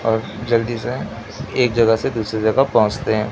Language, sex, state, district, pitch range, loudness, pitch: Hindi, male, Maharashtra, Mumbai Suburban, 110-120 Hz, -19 LUFS, 115 Hz